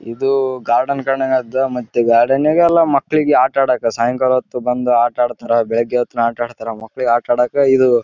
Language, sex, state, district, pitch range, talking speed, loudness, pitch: Kannada, male, Karnataka, Raichur, 120-135 Hz, 90 wpm, -15 LUFS, 125 Hz